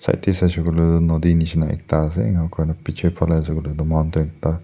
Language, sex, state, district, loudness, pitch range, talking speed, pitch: Nagamese, male, Nagaland, Dimapur, -20 LUFS, 80-85 Hz, 285 wpm, 80 Hz